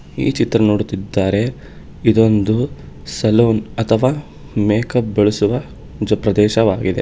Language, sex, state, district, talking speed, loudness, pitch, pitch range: Kannada, male, Karnataka, Bangalore, 85 wpm, -16 LUFS, 110 Hz, 105-115 Hz